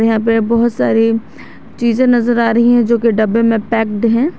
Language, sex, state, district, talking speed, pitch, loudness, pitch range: Hindi, female, Jharkhand, Garhwa, 205 wpm, 230 Hz, -13 LUFS, 225-235 Hz